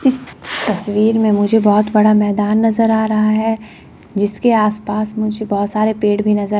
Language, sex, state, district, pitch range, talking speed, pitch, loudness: Hindi, female, Chandigarh, Chandigarh, 210-220 Hz, 165 wpm, 215 Hz, -15 LUFS